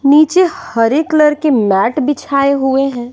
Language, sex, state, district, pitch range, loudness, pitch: Hindi, female, Bihar, Patna, 255-305 Hz, -13 LUFS, 280 Hz